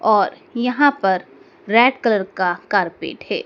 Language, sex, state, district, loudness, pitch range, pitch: Hindi, male, Madhya Pradesh, Dhar, -18 LUFS, 190-255 Hz, 230 Hz